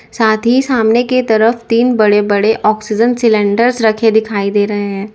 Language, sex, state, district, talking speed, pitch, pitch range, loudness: Hindi, female, Uttar Pradesh, Lalitpur, 175 wpm, 220 Hz, 210-235 Hz, -12 LUFS